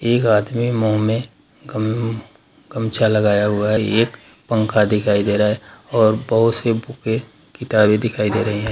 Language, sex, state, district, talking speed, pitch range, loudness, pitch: Hindi, male, Bihar, Darbhanga, 165 wpm, 105-115 Hz, -18 LUFS, 110 Hz